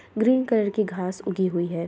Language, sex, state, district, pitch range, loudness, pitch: Hindi, female, Bihar, Begusarai, 185-220 Hz, -24 LUFS, 195 Hz